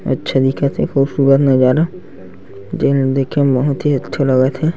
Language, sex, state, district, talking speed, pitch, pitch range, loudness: Chhattisgarhi, male, Chhattisgarh, Sarguja, 165 wpm, 135 Hz, 130-145 Hz, -15 LUFS